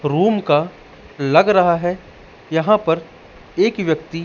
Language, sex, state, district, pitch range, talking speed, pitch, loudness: Hindi, male, Madhya Pradesh, Katni, 150-185 Hz, 125 wpm, 165 Hz, -17 LUFS